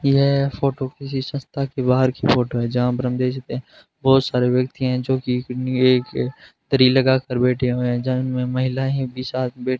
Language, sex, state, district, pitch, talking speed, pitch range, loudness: Hindi, male, Rajasthan, Bikaner, 130 Hz, 210 wpm, 125-135 Hz, -20 LUFS